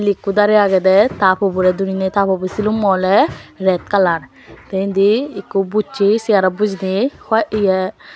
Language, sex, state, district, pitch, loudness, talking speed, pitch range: Chakma, female, Tripura, West Tripura, 195 Hz, -16 LUFS, 155 wpm, 190-210 Hz